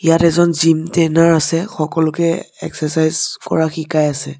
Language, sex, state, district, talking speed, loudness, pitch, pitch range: Assamese, male, Assam, Sonitpur, 135 wpm, -15 LUFS, 160 Hz, 155-165 Hz